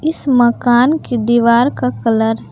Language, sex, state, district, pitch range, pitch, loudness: Hindi, female, Jharkhand, Palamu, 225-250 Hz, 235 Hz, -13 LUFS